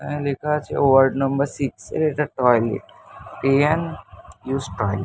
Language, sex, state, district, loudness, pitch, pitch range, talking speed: Bengali, male, West Bengal, North 24 Parganas, -21 LUFS, 135 Hz, 130-150 Hz, 165 wpm